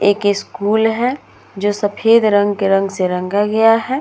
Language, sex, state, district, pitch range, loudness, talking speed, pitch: Hindi, female, Uttar Pradesh, Muzaffarnagar, 200-225 Hz, -15 LUFS, 180 wpm, 205 Hz